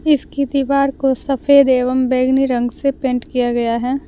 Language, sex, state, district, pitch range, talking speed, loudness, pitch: Hindi, female, Jharkhand, Deoghar, 250-275 Hz, 175 wpm, -16 LUFS, 265 Hz